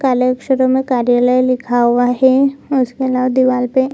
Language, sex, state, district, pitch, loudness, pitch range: Hindi, female, Bihar, Jamui, 255 Hz, -14 LUFS, 245-260 Hz